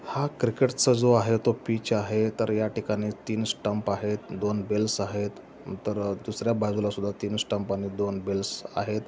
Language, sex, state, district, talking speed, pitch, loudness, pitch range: Marathi, male, Maharashtra, Solapur, 165 wpm, 105 Hz, -27 LUFS, 100-110 Hz